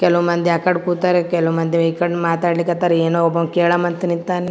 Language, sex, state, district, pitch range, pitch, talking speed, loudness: Kannada, female, Karnataka, Gulbarga, 170-175 Hz, 175 Hz, 145 wpm, -17 LUFS